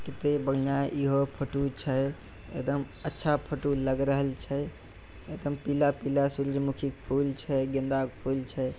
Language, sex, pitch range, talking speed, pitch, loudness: Maithili, male, 135-140 Hz, 145 wpm, 140 Hz, -30 LUFS